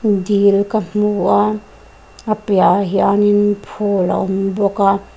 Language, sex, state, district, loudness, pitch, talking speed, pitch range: Mizo, female, Mizoram, Aizawl, -15 LUFS, 205 Hz, 150 wpm, 195-210 Hz